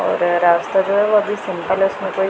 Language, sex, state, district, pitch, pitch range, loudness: Hindi, female, Punjab, Pathankot, 190 Hz, 175-200 Hz, -17 LUFS